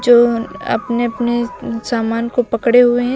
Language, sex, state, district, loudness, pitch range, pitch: Hindi, female, Uttar Pradesh, Lucknow, -16 LUFS, 230-245 Hz, 240 Hz